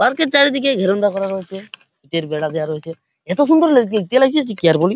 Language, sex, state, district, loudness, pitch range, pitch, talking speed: Bengali, male, West Bengal, Paschim Medinipur, -16 LUFS, 165-275 Hz, 205 Hz, 230 wpm